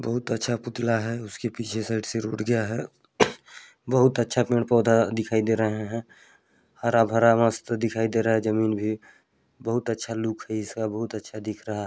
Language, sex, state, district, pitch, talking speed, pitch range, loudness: Chhattisgarhi, male, Chhattisgarh, Balrampur, 115 Hz, 185 wpm, 110-115 Hz, -25 LUFS